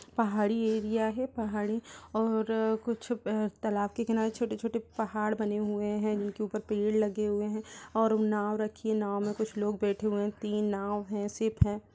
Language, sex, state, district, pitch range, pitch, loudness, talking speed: Hindi, female, Chhattisgarh, Raigarh, 210-220 Hz, 215 Hz, -31 LUFS, 175 wpm